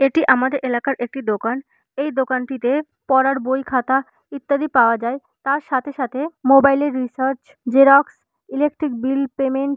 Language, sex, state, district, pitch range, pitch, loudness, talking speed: Bengali, female, West Bengal, Malda, 260-280 Hz, 270 Hz, -19 LUFS, 140 wpm